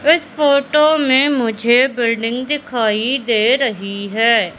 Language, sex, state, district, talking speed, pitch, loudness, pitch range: Hindi, female, Madhya Pradesh, Katni, 120 wpm, 250 Hz, -15 LUFS, 230-285 Hz